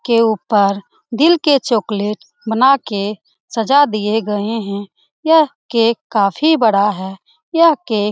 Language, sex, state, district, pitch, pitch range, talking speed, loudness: Hindi, female, Bihar, Lakhisarai, 225 Hz, 205-290 Hz, 140 wpm, -15 LUFS